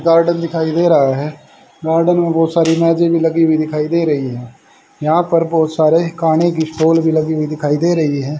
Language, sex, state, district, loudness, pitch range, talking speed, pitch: Hindi, male, Haryana, Charkhi Dadri, -14 LUFS, 155-165 Hz, 220 wpm, 160 Hz